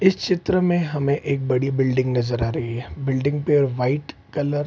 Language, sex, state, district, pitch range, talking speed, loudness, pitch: Hindi, male, Bihar, Darbhanga, 125-150 Hz, 205 wpm, -22 LUFS, 140 Hz